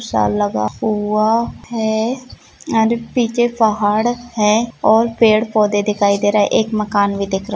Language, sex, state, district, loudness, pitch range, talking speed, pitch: Hindi, female, Maharashtra, Nagpur, -16 LUFS, 205-230 Hz, 160 wpm, 215 Hz